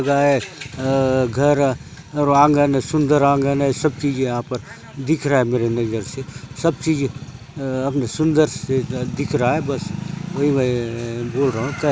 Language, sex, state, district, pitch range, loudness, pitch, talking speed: Halbi, male, Chhattisgarh, Bastar, 130-145 Hz, -19 LUFS, 135 Hz, 185 wpm